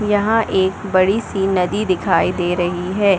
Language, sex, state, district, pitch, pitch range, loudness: Hindi, female, Chhattisgarh, Bilaspur, 190 Hz, 185-205 Hz, -17 LUFS